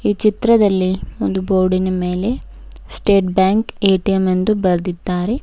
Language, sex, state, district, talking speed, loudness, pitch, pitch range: Kannada, female, Karnataka, Bidar, 120 wpm, -17 LUFS, 190 Hz, 185-210 Hz